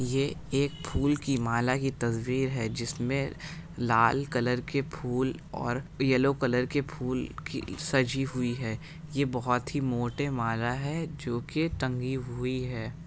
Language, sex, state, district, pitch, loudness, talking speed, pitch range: Hindi, male, Bihar, Araria, 130 Hz, -30 LUFS, 155 wpm, 125-140 Hz